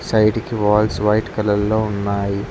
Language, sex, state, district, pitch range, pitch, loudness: Telugu, male, Telangana, Hyderabad, 100-110 Hz, 105 Hz, -18 LUFS